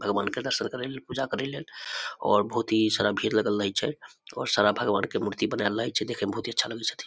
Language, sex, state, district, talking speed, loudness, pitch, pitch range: Maithili, male, Bihar, Samastipur, 255 wpm, -27 LUFS, 110 Hz, 105-120 Hz